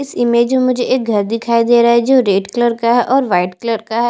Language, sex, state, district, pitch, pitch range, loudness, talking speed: Hindi, female, Chhattisgarh, Jashpur, 235 Hz, 230-245 Hz, -14 LUFS, 265 wpm